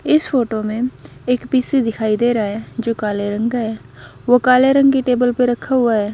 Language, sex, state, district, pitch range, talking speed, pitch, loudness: Hindi, female, Punjab, Kapurthala, 220-255 Hz, 225 wpm, 245 Hz, -17 LUFS